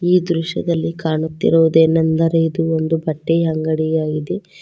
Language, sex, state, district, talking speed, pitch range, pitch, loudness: Kannada, female, Karnataka, Koppal, 105 wpm, 160-165 Hz, 160 Hz, -17 LUFS